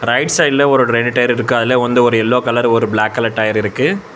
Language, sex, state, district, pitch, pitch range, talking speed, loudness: Tamil, male, Tamil Nadu, Chennai, 120 Hz, 115-125 Hz, 230 wpm, -14 LUFS